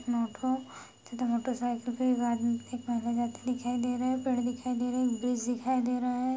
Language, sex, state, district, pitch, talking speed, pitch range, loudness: Hindi, female, Bihar, Madhepura, 245 Hz, 120 wpm, 240-250 Hz, -31 LUFS